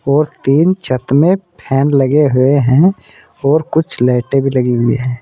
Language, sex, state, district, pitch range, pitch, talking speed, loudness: Hindi, male, Uttar Pradesh, Saharanpur, 130-150 Hz, 140 Hz, 170 wpm, -13 LUFS